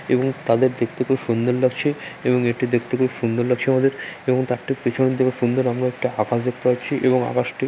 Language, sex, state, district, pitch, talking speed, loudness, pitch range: Bengali, male, West Bengal, Dakshin Dinajpur, 125 Hz, 210 wpm, -21 LUFS, 120-130 Hz